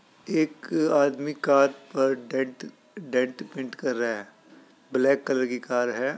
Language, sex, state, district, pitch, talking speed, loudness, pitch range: Hindi, male, Uttar Pradesh, Etah, 135 Hz, 145 wpm, -26 LUFS, 125-140 Hz